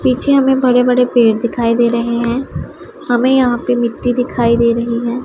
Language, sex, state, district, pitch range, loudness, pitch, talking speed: Hindi, female, Punjab, Pathankot, 235-250 Hz, -14 LUFS, 240 Hz, 195 wpm